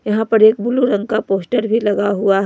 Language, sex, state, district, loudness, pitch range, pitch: Hindi, female, Jharkhand, Ranchi, -15 LUFS, 205-225 Hz, 215 Hz